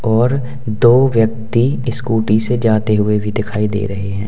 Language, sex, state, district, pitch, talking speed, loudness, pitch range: Hindi, male, Uttar Pradesh, Lalitpur, 110 Hz, 170 wpm, -15 LUFS, 105-120 Hz